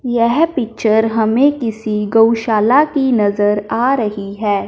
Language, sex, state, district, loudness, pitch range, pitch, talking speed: Hindi, male, Punjab, Fazilka, -15 LUFS, 210-250 Hz, 225 Hz, 130 wpm